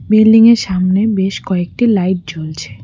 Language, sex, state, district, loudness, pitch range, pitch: Bengali, female, West Bengal, Cooch Behar, -12 LUFS, 175-215 Hz, 190 Hz